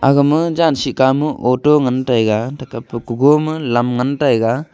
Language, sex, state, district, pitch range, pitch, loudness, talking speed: Wancho, male, Arunachal Pradesh, Longding, 120-150 Hz, 130 Hz, -15 LUFS, 165 wpm